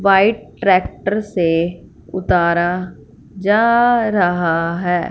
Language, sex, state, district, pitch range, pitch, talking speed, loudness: Hindi, female, Punjab, Fazilka, 175-205 Hz, 185 Hz, 80 wpm, -16 LUFS